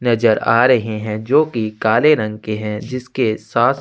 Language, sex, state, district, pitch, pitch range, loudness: Hindi, male, Chhattisgarh, Sukma, 110 Hz, 110-125 Hz, -17 LUFS